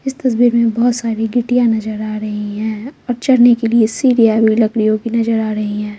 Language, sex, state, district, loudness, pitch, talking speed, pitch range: Hindi, female, Bihar, Patna, -15 LUFS, 225 Hz, 220 wpm, 215-245 Hz